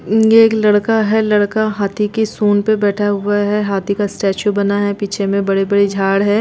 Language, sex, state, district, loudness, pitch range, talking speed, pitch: Hindi, female, Bihar, East Champaran, -15 LUFS, 200-215 Hz, 205 wpm, 205 Hz